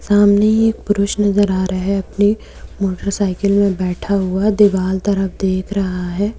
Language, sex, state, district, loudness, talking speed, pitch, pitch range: Hindi, female, Jharkhand, Deoghar, -16 LUFS, 160 wpm, 200 Hz, 190-205 Hz